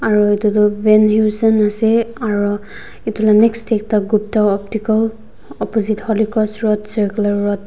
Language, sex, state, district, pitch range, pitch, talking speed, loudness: Nagamese, female, Nagaland, Dimapur, 210-220 Hz, 215 Hz, 150 wpm, -16 LUFS